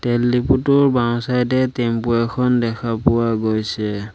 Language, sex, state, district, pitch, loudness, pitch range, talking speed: Assamese, male, Assam, Sonitpur, 120 Hz, -18 LUFS, 115-125 Hz, 130 wpm